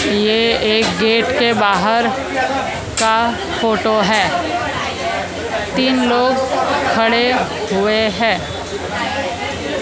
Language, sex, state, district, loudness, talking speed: Hindi, female, Maharashtra, Mumbai Suburban, -16 LUFS, 80 wpm